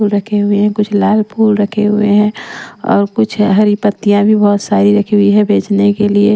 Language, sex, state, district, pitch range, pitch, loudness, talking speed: Hindi, female, Punjab, Pathankot, 205-210 Hz, 205 Hz, -12 LUFS, 205 wpm